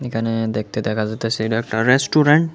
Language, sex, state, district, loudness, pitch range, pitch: Bengali, female, Tripura, West Tripura, -19 LUFS, 110-130 Hz, 115 Hz